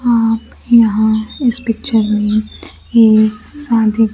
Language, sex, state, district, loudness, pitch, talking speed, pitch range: Hindi, female, Bihar, Kaimur, -13 LUFS, 225 Hz, 100 wpm, 215-235 Hz